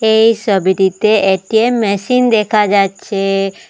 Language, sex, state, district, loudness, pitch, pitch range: Bengali, female, Assam, Hailakandi, -13 LUFS, 205 Hz, 195-220 Hz